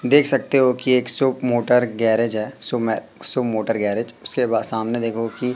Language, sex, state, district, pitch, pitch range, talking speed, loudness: Hindi, male, Madhya Pradesh, Katni, 120 Hz, 115-125 Hz, 185 wpm, -20 LUFS